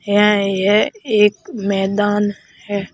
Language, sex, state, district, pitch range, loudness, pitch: Hindi, male, Madhya Pradesh, Bhopal, 200-210 Hz, -17 LUFS, 205 Hz